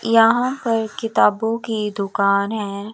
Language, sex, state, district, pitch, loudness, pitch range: Hindi, female, Chandigarh, Chandigarh, 220 Hz, -19 LUFS, 200-225 Hz